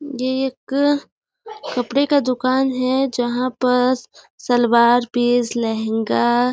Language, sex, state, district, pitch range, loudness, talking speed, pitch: Hindi, female, Chhattisgarh, Sarguja, 240-270 Hz, -19 LUFS, 100 wpm, 255 Hz